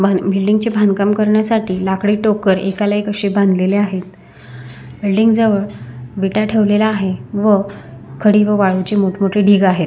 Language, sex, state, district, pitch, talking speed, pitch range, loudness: Marathi, female, Maharashtra, Sindhudurg, 200 Hz, 150 wpm, 190-210 Hz, -15 LUFS